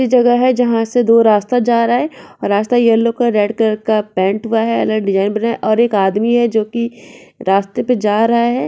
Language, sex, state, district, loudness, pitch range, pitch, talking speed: Hindi, female, Bihar, Saran, -14 LUFS, 215-240 Hz, 230 Hz, 240 wpm